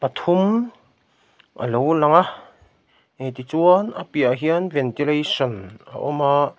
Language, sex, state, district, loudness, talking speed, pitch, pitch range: Mizo, male, Mizoram, Aizawl, -20 LUFS, 125 wpm, 150 Hz, 130-175 Hz